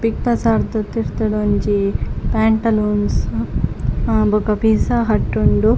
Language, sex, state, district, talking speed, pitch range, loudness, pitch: Tulu, female, Karnataka, Dakshina Kannada, 115 wpm, 210-225 Hz, -18 LUFS, 215 Hz